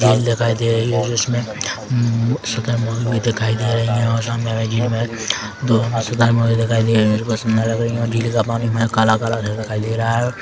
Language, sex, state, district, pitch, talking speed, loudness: Hindi, male, Chhattisgarh, Korba, 115 Hz, 240 wpm, -18 LUFS